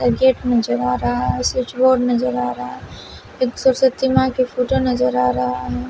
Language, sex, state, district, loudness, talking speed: Hindi, female, Bihar, West Champaran, -18 LUFS, 215 wpm